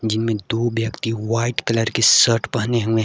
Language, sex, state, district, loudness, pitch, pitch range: Hindi, male, Jharkhand, Garhwa, -19 LUFS, 115 Hz, 110-115 Hz